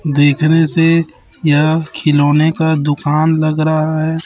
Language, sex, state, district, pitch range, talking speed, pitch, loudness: Hindi, male, Chhattisgarh, Raipur, 150-160 Hz, 125 wpm, 155 Hz, -13 LUFS